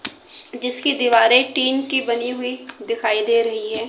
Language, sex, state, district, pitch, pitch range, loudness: Hindi, female, Haryana, Jhajjar, 240 Hz, 230-255 Hz, -19 LUFS